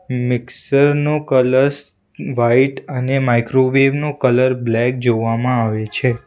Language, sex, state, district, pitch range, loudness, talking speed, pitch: Gujarati, male, Gujarat, Valsad, 120-135 Hz, -16 LUFS, 115 wpm, 125 Hz